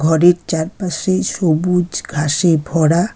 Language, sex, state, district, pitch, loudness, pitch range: Bengali, female, West Bengal, Alipurduar, 170 Hz, -16 LUFS, 160-180 Hz